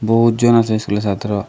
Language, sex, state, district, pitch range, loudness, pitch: Bengali, male, Tripura, Dhalai, 105-115 Hz, -16 LUFS, 110 Hz